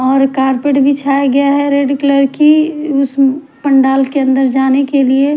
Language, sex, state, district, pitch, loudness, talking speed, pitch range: Hindi, female, Haryana, Charkhi Dadri, 275 Hz, -12 LUFS, 180 wpm, 270-280 Hz